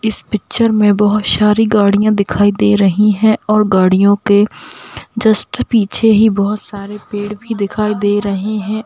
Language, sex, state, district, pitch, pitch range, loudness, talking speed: Hindi, female, Bihar, Darbhanga, 210 Hz, 205-215 Hz, -13 LUFS, 170 wpm